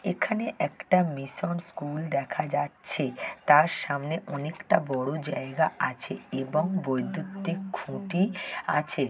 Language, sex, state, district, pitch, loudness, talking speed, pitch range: Bengali, male, West Bengal, Jhargram, 160 Hz, -28 LUFS, 105 wpm, 140-190 Hz